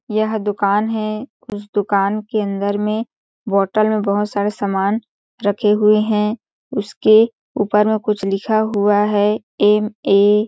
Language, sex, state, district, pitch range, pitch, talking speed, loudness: Hindi, female, Chhattisgarh, Sarguja, 205-215 Hz, 210 Hz, 150 wpm, -17 LUFS